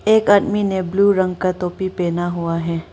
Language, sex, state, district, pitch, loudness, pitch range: Hindi, female, Arunachal Pradesh, Lower Dibang Valley, 185 Hz, -18 LUFS, 175-200 Hz